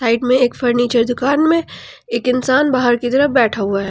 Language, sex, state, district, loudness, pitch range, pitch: Hindi, female, Jharkhand, Palamu, -15 LUFS, 240-260 Hz, 245 Hz